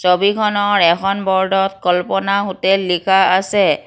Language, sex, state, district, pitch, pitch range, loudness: Assamese, female, Assam, Kamrup Metropolitan, 195 Hz, 185-200 Hz, -15 LUFS